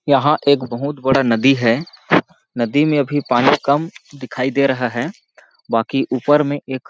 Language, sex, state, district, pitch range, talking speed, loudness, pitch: Hindi, male, Chhattisgarh, Balrampur, 130-145 Hz, 175 wpm, -17 LUFS, 140 Hz